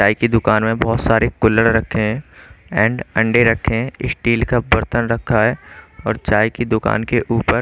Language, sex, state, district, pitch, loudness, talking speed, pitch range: Hindi, male, Chandigarh, Chandigarh, 115 Hz, -17 LUFS, 190 wpm, 110-120 Hz